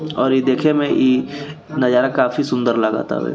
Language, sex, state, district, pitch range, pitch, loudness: Bhojpuri, male, Bihar, East Champaran, 125-145 Hz, 130 Hz, -17 LUFS